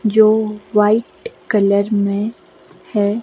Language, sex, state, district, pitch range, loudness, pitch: Hindi, female, Himachal Pradesh, Shimla, 205-220 Hz, -16 LUFS, 210 Hz